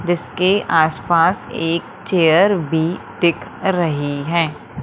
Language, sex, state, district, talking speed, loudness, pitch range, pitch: Hindi, female, Madhya Pradesh, Umaria, 110 wpm, -17 LUFS, 160-180 Hz, 170 Hz